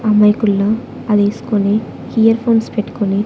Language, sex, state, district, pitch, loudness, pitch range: Telugu, female, Andhra Pradesh, Annamaya, 210 Hz, -15 LUFS, 205-225 Hz